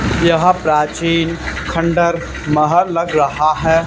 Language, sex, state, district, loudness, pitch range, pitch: Hindi, male, Haryana, Charkhi Dadri, -15 LUFS, 155-170 Hz, 165 Hz